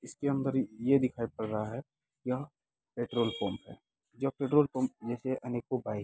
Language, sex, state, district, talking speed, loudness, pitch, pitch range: Hindi, male, Bihar, Muzaffarpur, 170 wpm, -33 LUFS, 130 Hz, 120-135 Hz